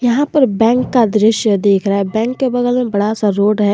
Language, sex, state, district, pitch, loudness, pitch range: Hindi, male, Jharkhand, Garhwa, 220 Hz, -14 LUFS, 205-245 Hz